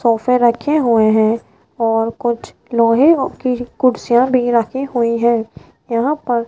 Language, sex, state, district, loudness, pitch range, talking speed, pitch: Hindi, female, Rajasthan, Jaipur, -16 LUFS, 230-255 Hz, 150 wpm, 240 Hz